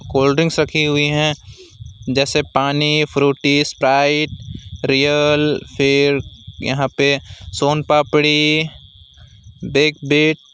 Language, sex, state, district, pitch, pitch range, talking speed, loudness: Hindi, male, West Bengal, Alipurduar, 140 Hz, 125-150 Hz, 85 wpm, -16 LUFS